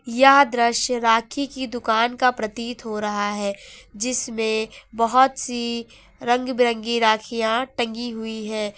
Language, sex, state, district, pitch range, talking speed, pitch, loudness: Hindi, female, Uttar Pradesh, Lucknow, 220-245 Hz, 130 wpm, 235 Hz, -21 LUFS